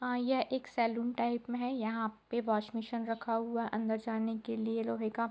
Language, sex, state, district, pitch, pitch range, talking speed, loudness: Hindi, female, Bihar, Bhagalpur, 230 Hz, 225-240 Hz, 225 wpm, -35 LUFS